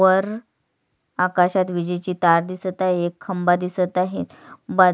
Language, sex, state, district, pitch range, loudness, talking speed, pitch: Marathi, female, Maharashtra, Sindhudurg, 175-185 Hz, -21 LUFS, 135 wpm, 180 Hz